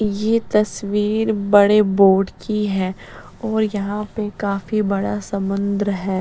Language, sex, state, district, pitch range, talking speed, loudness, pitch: Hindi, female, Bihar, Patna, 200-210 Hz, 135 wpm, -19 LUFS, 205 Hz